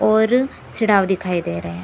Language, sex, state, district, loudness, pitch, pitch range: Hindi, female, Bihar, Supaul, -19 LUFS, 190 Hz, 170-220 Hz